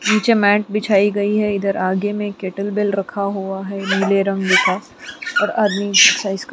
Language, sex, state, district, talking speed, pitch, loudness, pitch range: Hindi, female, Chhattisgarh, Sukma, 185 wpm, 200 Hz, -17 LUFS, 195-210 Hz